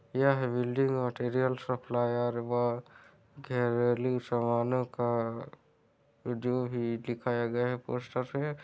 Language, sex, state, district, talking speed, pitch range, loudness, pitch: Hindi, male, Chhattisgarh, Raigarh, 120 wpm, 120-130 Hz, -31 LUFS, 125 Hz